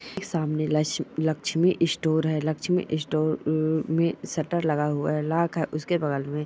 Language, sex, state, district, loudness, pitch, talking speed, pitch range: Hindi, male, Bihar, Purnia, -26 LUFS, 155 Hz, 165 wpm, 155-170 Hz